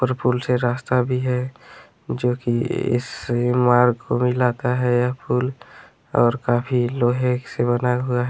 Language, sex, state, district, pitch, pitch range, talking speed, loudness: Hindi, male, Chhattisgarh, Raigarh, 125 Hz, 120-125 Hz, 160 wpm, -21 LUFS